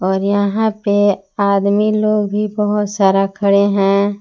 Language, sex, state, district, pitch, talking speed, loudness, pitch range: Hindi, female, Jharkhand, Palamu, 200 Hz, 140 wpm, -15 LUFS, 200-210 Hz